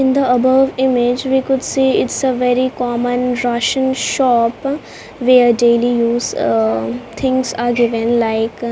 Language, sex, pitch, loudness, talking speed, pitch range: English, female, 245 Hz, -15 LUFS, 160 wpm, 235-260 Hz